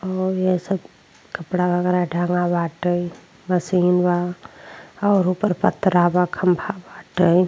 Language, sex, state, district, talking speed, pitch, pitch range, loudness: Bhojpuri, female, Uttar Pradesh, Deoria, 120 wpm, 180 Hz, 175-185 Hz, -20 LUFS